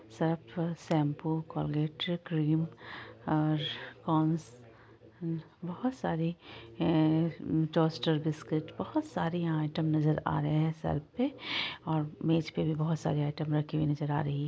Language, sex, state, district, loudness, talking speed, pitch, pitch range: Hindi, female, Bihar, Araria, -32 LUFS, 135 wpm, 155 Hz, 150-165 Hz